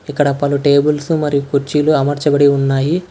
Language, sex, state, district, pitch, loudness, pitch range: Telugu, male, Karnataka, Bangalore, 145 Hz, -14 LUFS, 140-150 Hz